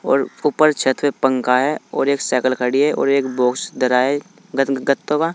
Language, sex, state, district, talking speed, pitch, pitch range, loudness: Hindi, male, Uttar Pradesh, Saharanpur, 190 wpm, 135 Hz, 130-145 Hz, -18 LUFS